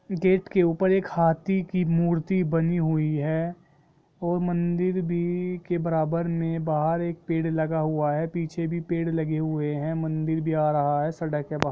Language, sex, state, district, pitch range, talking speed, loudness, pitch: Hindi, male, Jharkhand, Sahebganj, 155-175 Hz, 190 wpm, -26 LUFS, 165 Hz